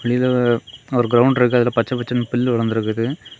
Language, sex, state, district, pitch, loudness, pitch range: Tamil, male, Tamil Nadu, Kanyakumari, 120 Hz, -18 LUFS, 120-125 Hz